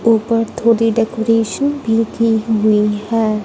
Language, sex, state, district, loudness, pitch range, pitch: Hindi, female, Punjab, Fazilka, -15 LUFS, 220-230 Hz, 225 Hz